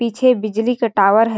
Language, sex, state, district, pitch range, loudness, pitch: Hindi, female, Chhattisgarh, Balrampur, 215-235 Hz, -16 LUFS, 225 Hz